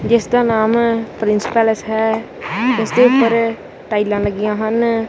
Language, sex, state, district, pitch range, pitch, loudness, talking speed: Punjabi, male, Punjab, Kapurthala, 215-235 Hz, 225 Hz, -16 LUFS, 130 wpm